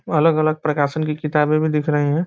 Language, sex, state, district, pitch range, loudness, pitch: Hindi, male, Bihar, Muzaffarpur, 150-155 Hz, -19 LUFS, 150 Hz